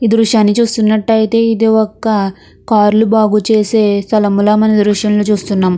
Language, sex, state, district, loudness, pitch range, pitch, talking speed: Telugu, female, Andhra Pradesh, Krishna, -12 LUFS, 210-220 Hz, 215 Hz, 145 wpm